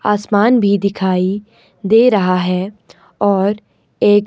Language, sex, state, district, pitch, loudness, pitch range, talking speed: Hindi, male, Himachal Pradesh, Shimla, 205 Hz, -14 LUFS, 190-210 Hz, 125 wpm